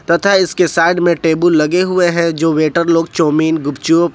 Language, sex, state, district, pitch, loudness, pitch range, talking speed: Hindi, male, Jharkhand, Ranchi, 165 Hz, -13 LUFS, 160-175 Hz, 190 wpm